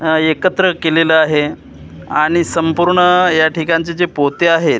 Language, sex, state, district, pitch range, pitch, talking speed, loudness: Marathi, male, Maharashtra, Gondia, 160-175 Hz, 165 Hz, 135 wpm, -13 LUFS